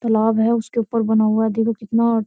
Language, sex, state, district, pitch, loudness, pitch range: Hindi, female, Uttar Pradesh, Jyotiba Phule Nagar, 225 Hz, -19 LUFS, 220-230 Hz